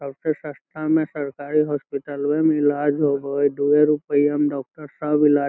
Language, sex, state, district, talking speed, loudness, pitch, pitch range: Hindi, male, Bihar, Lakhisarai, 175 wpm, -21 LUFS, 145 Hz, 145-150 Hz